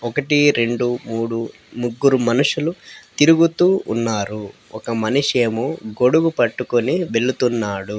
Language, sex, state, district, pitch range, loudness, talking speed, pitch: Telugu, female, Andhra Pradesh, Sri Satya Sai, 115-145 Hz, -18 LUFS, 90 wpm, 120 Hz